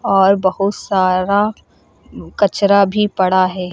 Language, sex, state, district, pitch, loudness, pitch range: Hindi, female, Uttar Pradesh, Lucknow, 195 Hz, -15 LUFS, 185-200 Hz